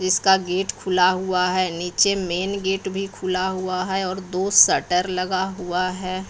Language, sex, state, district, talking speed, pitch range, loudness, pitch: Hindi, female, Bihar, Patna, 170 wpm, 185-190 Hz, -21 LUFS, 185 Hz